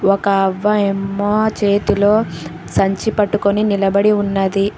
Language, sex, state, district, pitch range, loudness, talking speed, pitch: Telugu, female, Telangana, Hyderabad, 195-210 Hz, -16 LUFS, 90 wpm, 200 Hz